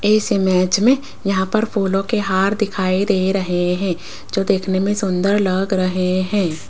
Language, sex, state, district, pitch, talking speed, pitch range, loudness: Hindi, female, Rajasthan, Jaipur, 195 Hz, 170 wpm, 185-205 Hz, -18 LUFS